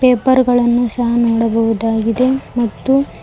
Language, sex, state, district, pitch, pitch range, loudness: Kannada, female, Karnataka, Koppal, 240 Hz, 230-255 Hz, -15 LUFS